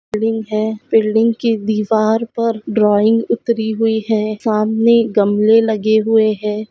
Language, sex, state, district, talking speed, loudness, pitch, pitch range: Hindi, female, Goa, North and South Goa, 135 wpm, -15 LUFS, 220 Hz, 215-225 Hz